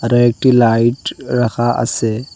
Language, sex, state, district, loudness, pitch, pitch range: Bengali, male, Assam, Hailakandi, -14 LUFS, 120 Hz, 115-125 Hz